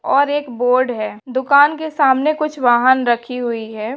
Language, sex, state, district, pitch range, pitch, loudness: Hindi, female, West Bengal, Paschim Medinipur, 240-285 Hz, 255 Hz, -16 LUFS